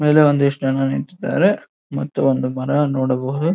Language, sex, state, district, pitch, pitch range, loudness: Kannada, male, Karnataka, Dharwad, 135 Hz, 130-145 Hz, -19 LUFS